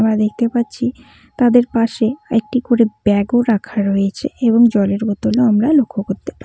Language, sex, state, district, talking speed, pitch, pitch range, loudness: Bengali, female, West Bengal, Cooch Behar, 175 wpm, 230 Hz, 210-245 Hz, -16 LUFS